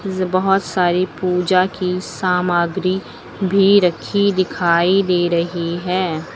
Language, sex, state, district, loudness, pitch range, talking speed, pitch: Hindi, female, Uttar Pradesh, Lucknow, -17 LUFS, 175-190 Hz, 105 wpm, 185 Hz